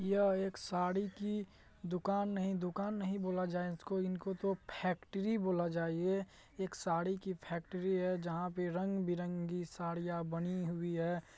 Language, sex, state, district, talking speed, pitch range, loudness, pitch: Hindi, male, Bihar, Madhepura, 155 wpm, 175-195 Hz, -38 LUFS, 185 Hz